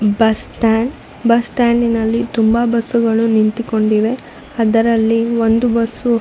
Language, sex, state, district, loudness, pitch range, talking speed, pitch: Kannada, female, Karnataka, Shimoga, -15 LUFS, 225-235 Hz, 125 wpm, 230 Hz